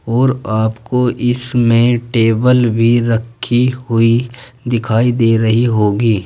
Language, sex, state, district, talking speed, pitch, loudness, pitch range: Hindi, male, Uttar Pradesh, Saharanpur, 105 wpm, 120 Hz, -14 LUFS, 115-125 Hz